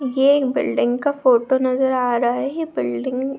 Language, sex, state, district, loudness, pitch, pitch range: Hindi, female, Bihar, Saharsa, -19 LUFS, 260 Hz, 245-275 Hz